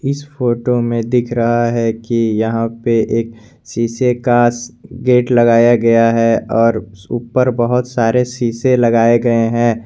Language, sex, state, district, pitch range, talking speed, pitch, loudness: Hindi, male, Jharkhand, Garhwa, 115-125 Hz, 145 wpm, 120 Hz, -14 LUFS